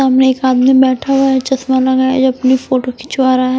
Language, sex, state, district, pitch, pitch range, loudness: Hindi, female, Himachal Pradesh, Shimla, 260 Hz, 255-265 Hz, -12 LUFS